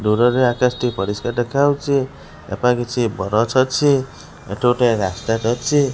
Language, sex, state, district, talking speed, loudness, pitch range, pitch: Odia, male, Odisha, Khordha, 160 wpm, -18 LUFS, 110-130 Hz, 120 Hz